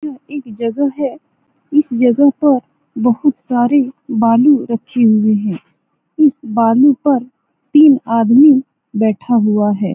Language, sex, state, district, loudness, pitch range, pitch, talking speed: Hindi, female, Bihar, Saran, -13 LUFS, 230-285 Hz, 250 Hz, 145 wpm